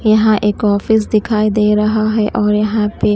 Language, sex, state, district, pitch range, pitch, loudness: Hindi, female, Himachal Pradesh, Shimla, 210-215 Hz, 215 Hz, -14 LUFS